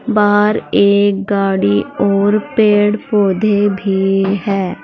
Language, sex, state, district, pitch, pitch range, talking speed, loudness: Hindi, female, Uttar Pradesh, Saharanpur, 205 Hz, 195-210 Hz, 100 wpm, -14 LUFS